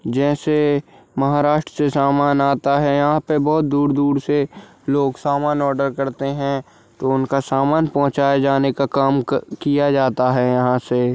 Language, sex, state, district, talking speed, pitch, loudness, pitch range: Hindi, male, Bihar, Darbhanga, 155 wpm, 140 Hz, -18 LUFS, 135-145 Hz